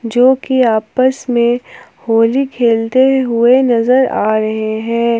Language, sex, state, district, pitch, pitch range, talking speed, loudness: Hindi, female, Jharkhand, Palamu, 235 Hz, 225-260 Hz, 115 wpm, -13 LUFS